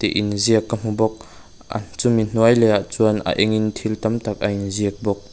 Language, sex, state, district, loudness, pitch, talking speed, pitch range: Mizo, male, Mizoram, Aizawl, -20 LUFS, 110 Hz, 225 wpm, 100-110 Hz